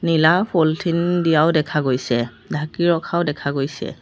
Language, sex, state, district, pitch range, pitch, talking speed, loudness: Assamese, female, Assam, Sonitpur, 145-170 Hz, 160 Hz, 135 wpm, -19 LUFS